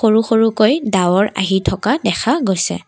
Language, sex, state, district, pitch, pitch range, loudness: Assamese, female, Assam, Kamrup Metropolitan, 215 Hz, 190-225 Hz, -15 LUFS